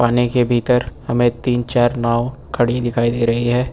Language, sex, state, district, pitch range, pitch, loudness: Hindi, male, Uttar Pradesh, Lucknow, 120-125 Hz, 120 Hz, -17 LUFS